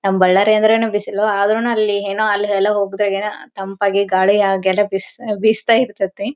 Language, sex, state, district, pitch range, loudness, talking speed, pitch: Kannada, female, Karnataka, Bellary, 195-215 Hz, -16 LUFS, 150 wpm, 205 Hz